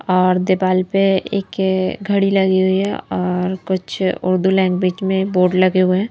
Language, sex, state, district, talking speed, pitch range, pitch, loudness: Hindi, female, Madhya Pradesh, Bhopal, 165 wpm, 185-195 Hz, 190 Hz, -17 LUFS